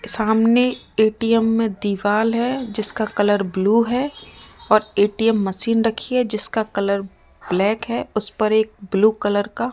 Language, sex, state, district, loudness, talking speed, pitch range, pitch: Hindi, female, Rajasthan, Jaipur, -20 LUFS, 155 wpm, 205-230 Hz, 220 Hz